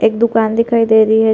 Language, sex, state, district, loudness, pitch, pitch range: Hindi, female, Chhattisgarh, Sarguja, -12 LUFS, 225 Hz, 220-230 Hz